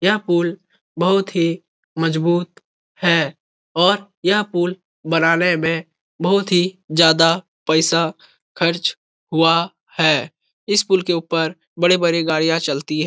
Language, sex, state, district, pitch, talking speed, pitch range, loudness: Hindi, male, Bihar, Jahanabad, 170 Hz, 115 wpm, 165-180 Hz, -18 LUFS